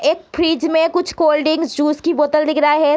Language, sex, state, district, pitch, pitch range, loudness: Hindi, female, Bihar, Gopalganj, 310 Hz, 300-325 Hz, -16 LUFS